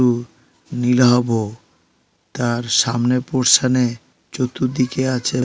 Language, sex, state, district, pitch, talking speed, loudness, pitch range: Bengali, male, West Bengal, Paschim Medinipur, 125 Hz, 90 wpm, -18 LUFS, 115-125 Hz